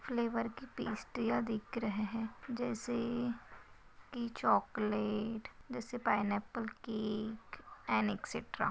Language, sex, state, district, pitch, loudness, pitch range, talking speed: Hindi, female, Maharashtra, Pune, 230 Hz, -38 LUFS, 215-240 Hz, 105 wpm